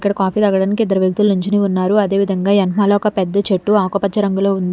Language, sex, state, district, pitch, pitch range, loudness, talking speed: Telugu, female, Telangana, Hyderabad, 200 Hz, 190-205 Hz, -15 LUFS, 215 wpm